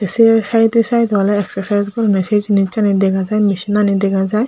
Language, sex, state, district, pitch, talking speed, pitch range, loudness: Chakma, male, Tripura, Unakoti, 205 Hz, 145 wpm, 195-220 Hz, -15 LUFS